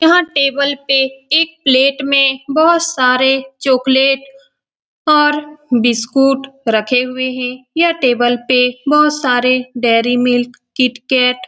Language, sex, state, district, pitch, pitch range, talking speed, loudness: Hindi, female, Bihar, Saran, 265 Hz, 250-280 Hz, 120 wpm, -13 LUFS